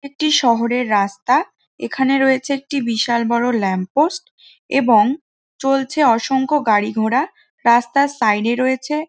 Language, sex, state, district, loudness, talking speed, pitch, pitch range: Bengali, female, West Bengal, Jhargram, -17 LUFS, 130 wpm, 260 Hz, 235-285 Hz